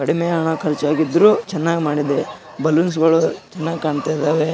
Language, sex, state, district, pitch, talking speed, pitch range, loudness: Kannada, male, Karnataka, Gulbarga, 160 Hz, 120 wpm, 155-165 Hz, -18 LUFS